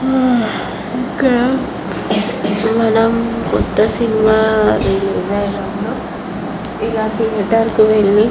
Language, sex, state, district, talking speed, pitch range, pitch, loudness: Telugu, male, Andhra Pradesh, Visakhapatnam, 85 wpm, 215-230 Hz, 220 Hz, -15 LUFS